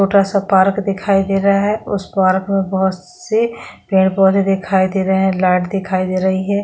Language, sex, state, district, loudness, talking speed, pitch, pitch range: Hindi, female, Chhattisgarh, Korba, -16 LUFS, 190 wpm, 195 Hz, 190-200 Hz